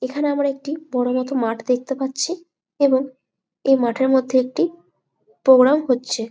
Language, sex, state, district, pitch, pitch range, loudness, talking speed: Bengali, female, West Bengal, Malda, 265 Hz, 255-285 Hz, -19 LUFS, 150 wpm